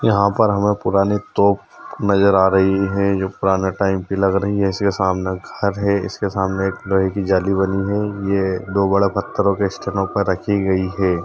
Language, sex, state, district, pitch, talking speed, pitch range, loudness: Hindi, male, Bihar, Jamui, 100 Hz, 205 wpm, 95-100 Hz, -18 LUFS